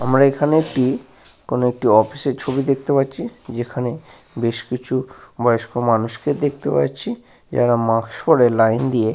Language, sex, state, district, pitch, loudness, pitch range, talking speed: Bengali, male, West Bengal, Paschim Medinipur, 125 Hz, -19 LUFS, 115-135 Hz, 140 wpm